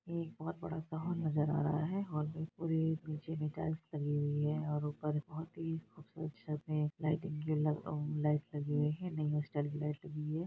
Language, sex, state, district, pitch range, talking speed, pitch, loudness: Hindi, female, Bihar, Araria, 150-160 Hz, 210 wpm, 155 Hz, -38 LUFS